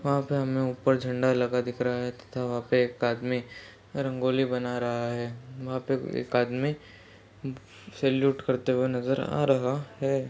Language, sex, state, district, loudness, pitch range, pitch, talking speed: Hindi, male, Uttar Pradesh, Hamirpur, -28 LUFS, 125-135 Hz, 125 Hz, 170 wpm